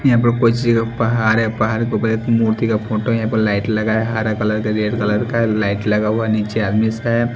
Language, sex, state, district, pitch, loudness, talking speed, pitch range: Hindi, male, Haryana, Jhajjar, 110 Hz, -17 LUFS, 255 wpm, 110-115 Hz